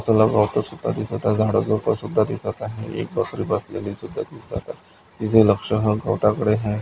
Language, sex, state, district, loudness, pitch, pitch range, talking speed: Marathi, male, Maharashtra, Nagpur, -22 LUFS, 110 Hz, 105-110 Hz, 185 wpm